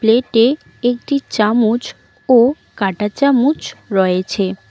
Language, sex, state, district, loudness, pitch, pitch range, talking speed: Bengali, female, West Bengal, Cooch Behar, -16 LUFS, 230 Hz, 200-260 Hz, 100 wpm